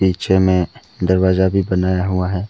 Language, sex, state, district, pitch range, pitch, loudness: Hindi, male, Arunachal Pradesh, Papum Pare, 90-95 Hz, 95 Hz, -17 LUFS